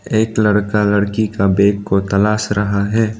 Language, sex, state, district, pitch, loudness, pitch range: Hindi, male, Arunachal Pradesh, Lower Dibang Valley, 105 Hz, -15 LUFS, 100-110 Hz